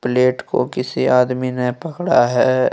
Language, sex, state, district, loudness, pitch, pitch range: Hindi, male, Jharkhand, Deoghar, -17 LUFS, 125 Hz, 125-130 Hz